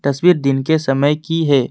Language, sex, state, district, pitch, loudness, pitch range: Hindi, male, Assam, Kamrup Metropolitan, 145 Hz, -16 LUFS, 135-160 Hz